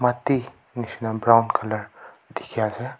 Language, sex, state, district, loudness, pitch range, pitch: Nagamese, male, Nagaland, Kohima, -23 LUFS, 115-125 Hz, 120 Hz